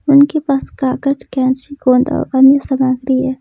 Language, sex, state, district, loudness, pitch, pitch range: Hindi, female, Jharkhand, Ranchi, -14 LUFS, 265 Hz, 260-280 Hz